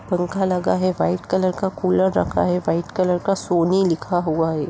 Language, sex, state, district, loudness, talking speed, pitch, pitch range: Hindi, female, Uttar Pradesh, Etah, -20 LUFS, 205 wpm, 175 Hz, 160-185 Hz